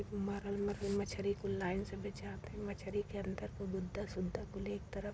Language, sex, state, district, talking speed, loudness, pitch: Awadhi, female, Uttar Pradesh, Varanasi, 210 wpm, -41 LUFS, 195 Hz